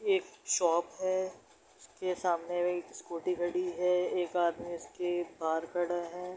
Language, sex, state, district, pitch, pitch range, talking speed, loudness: Hindi, male, Bihar, Darbhanga, 175 Hz, 175-180 Hz, 140 wpm, -33 LUFS